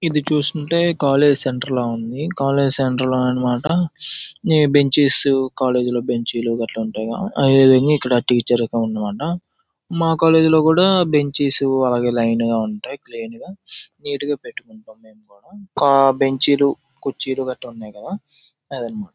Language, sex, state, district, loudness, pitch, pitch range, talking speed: Telugu, male, Andhra Pradesh, Srikakulam, -18 LUFS, 135 Hz, 120-155 Hz, 150 wpm